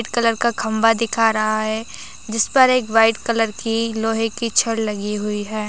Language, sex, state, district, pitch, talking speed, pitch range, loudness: Hindi, female, Rajasthan, Churu, 225 Hz, 200 wpm, 215-230 Hz, -19 LUFS